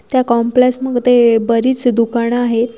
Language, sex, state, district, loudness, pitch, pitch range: Marathi, female, Maharashtra, Washim, -13 LUFS, 240 Hz, 235-250 Hz